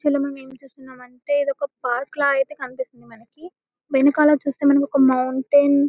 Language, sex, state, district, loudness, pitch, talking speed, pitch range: Telugu, female, Telangana, Karimnagar, -20 LUFS, 275 Hz, 155 wpm, 260-285 Hz